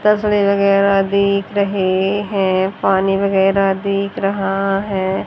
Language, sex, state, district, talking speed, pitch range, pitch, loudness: Hindi, female, Haryana, Jhajjar, 115 wpm, 195-200 Hz, 195 Hz, -16 LUFS